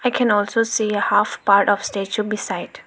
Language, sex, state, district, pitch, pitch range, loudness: English, female, Arunachal Pradesh, Lower Dibang Valley, 210 Hz, 205-230 Hz, -19 LUFS